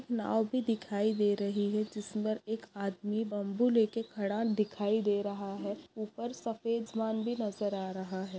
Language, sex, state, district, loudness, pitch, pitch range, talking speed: Hindi, female, Maharashtra, Nagpur, -34 LUFS, 215 Hz, 205-225 Hz, 170 wpm